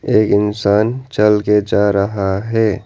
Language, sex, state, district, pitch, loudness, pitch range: Hindi, male, Arunachal Pradesh, Lower Dibang Valley, 105 Hz, -15 LUFS, 100-110 Hz